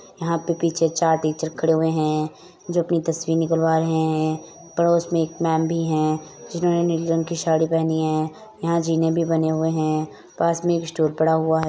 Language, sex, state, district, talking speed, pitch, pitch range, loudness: Hindi, female, Bihar, Purnia, 215 wpm, 165 Hz, 160-170 Hz, -22 LUFS